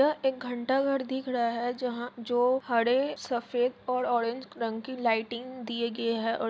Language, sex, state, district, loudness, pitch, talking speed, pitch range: Hindi, female, Jharkhand, Jamtara, -30 LUFS, 245 Hz, 155 wpm, 235-255 Hz